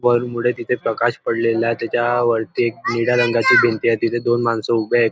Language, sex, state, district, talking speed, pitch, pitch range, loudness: Marathi, male, Maharashtra, Nagpur, 200 wpm, 120 Hz, 115-120 Hz, -18 LUFS